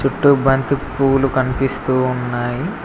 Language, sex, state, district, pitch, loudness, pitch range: Telugu, male, Telangana, Mahabubabad, 135 Hz, -17 LUFS, 130-135 Hz